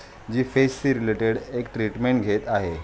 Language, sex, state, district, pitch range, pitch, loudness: Marathi, male, Maharashtra, Aurangabad, 105-130 Hz, 115 Hz, -24 LUFS